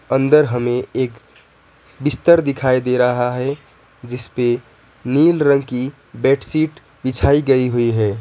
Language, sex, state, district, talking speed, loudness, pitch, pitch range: Hindi, male, West Bengal, Alipurduar, 125 wpm, -17 LUFS, 130 Hz, 125-140 Hz